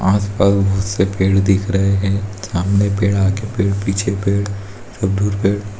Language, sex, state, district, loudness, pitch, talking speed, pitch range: Hindi, male, Bihar, Muzaffarpur, -17 LUFS, 100 Hz, 145 wpm, 95-100 Hz